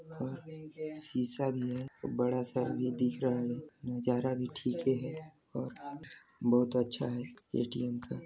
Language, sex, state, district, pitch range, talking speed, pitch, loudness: Hindi, male, Chhattisgarh, Sarguja, 125-145 Hz, 175 wpm, 125 Hz, -35 LUFS